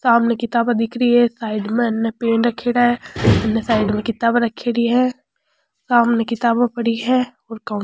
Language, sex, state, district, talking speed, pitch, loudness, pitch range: Rajasthani, female, Rajasthan, Churu, 185 wpm, 235 Hz, -18 LUFS, 225-240 Hz